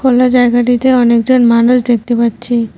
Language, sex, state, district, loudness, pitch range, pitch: Bengali, female, West Bengal, Cooch Behar, -11 LUFS, 235-250 Hz, 245 Hz